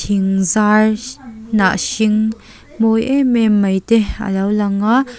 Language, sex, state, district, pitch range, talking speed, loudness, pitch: Mizo, female, Mizoram, Aizawl, 200-230 Hz, 125 wpm, -15 LUFS, 215 Hz